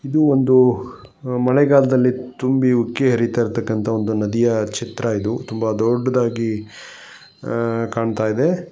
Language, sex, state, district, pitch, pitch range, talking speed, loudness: Kannada, male, Karnataka, Gulbarga, 120 Hz, 110-130 Hz, 115 wpm, -19 LUFS